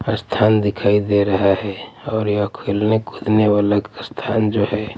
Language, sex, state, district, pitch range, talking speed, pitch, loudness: Hindi, male, Punjab, Pathankot, 100-110 Hz, 155 wpm, 105 Hz, -18 LUFS